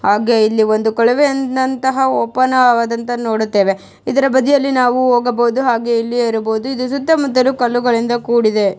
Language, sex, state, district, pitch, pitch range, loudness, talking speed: Kannada, female, Karnataka, Mysore, 245 Hz, 230-260 Hz, -15 LUFS, 130 wpm